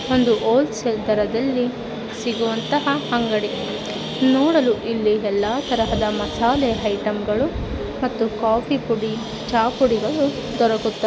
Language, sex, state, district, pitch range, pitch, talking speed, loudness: Kannada, female, Karnataka, Dakshina Kannada, 220-250 Hz, 230 Hz, 90 wpm, -21 LUFS